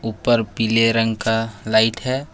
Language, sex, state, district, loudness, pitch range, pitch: Hindi, male, Jharkhand, Ranchi, -19 LUFS, 110-115 Hz, 115 Hz